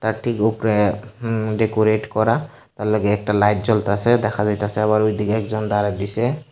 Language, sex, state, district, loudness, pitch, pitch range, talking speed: Bengali, male, Tripura, Unakoti, -20 LUFS, 110 Hz, 105-110 Hz, 165 wpm